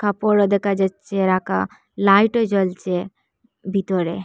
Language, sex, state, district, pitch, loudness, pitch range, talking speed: Bengali, female, Assam, Hailakandi, 195 Hz, -20 LUFS, 190-205 Hz, 115 wpm